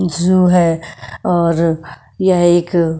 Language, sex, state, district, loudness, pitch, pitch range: Hindi, female, Maharashtra, Chandrapur, -14 LUFS, 175 Hz, 165-180 Hz